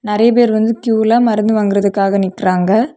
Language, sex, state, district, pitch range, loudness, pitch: Tamil, female, Tamil Nadu, Kanyakumari, 200-230 Hz, -13 LUFS, 215 Hz